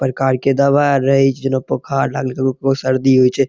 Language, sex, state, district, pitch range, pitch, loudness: Maithili, male, Bihar, Saharsa, 130-135 Hz, 135 Hz, -16 LUFS